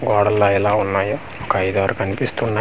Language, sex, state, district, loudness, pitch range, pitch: Telugu, male, Andhra Pradesh, Manyam, -19 LUFS, 95-105 Hz, 100 Hz